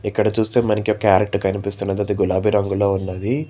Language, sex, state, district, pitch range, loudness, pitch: Telugu, male, Telangana, Hyderabad, 95-110 Hz, -19 LUFS, 100 Hz